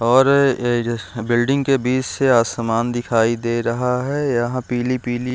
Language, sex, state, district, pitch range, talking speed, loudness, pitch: Hindi, male, Chhattisgarh, Raigarh, 120-130 Hz, 155 wpm, -19 LUFS, 120 Hz